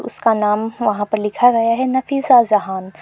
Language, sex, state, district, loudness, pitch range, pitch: Hindi, female, Arunachal Pradesh, Lower Dibang Valley, -16 LUFS, 210-245 Hz, 225 Hz